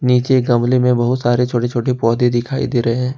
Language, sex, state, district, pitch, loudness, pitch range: Hindi, male, Jharkhand, Ranchi, 125 Hz, -16 LUFS, 120-125 Hz